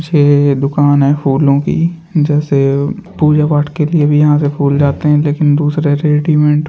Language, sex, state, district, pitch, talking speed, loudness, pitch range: Hindi, male, Uttar Pradesh, Muzaffarnagar, 150 Hz, 180 wpm, -12 LUFS, 145-150 Hz